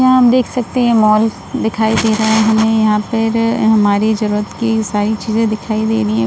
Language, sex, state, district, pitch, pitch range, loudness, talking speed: Hindi, female, Uttar Pradesh, Budaun, 220 Hz, 215-225 Hz, -14 LUFS, 210 wpm